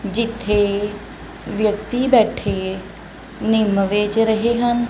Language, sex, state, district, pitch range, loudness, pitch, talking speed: Punjabi, female, Punjab, Kapurthala, 200-230 Hz, -19 LUFS, 210 Hz, 85 wpm